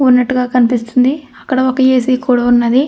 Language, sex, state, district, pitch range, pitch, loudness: Telugu, female, Andhra Pradesh, Krishna, 245-260 Hz, 255 Hz, -13 LUFS